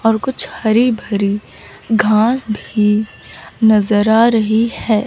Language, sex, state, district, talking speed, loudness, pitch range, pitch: Hindi, female, Chandigarh, Chandigarh, 120 wpm, -15 LUFS, 215-230 Hz, 220 Hz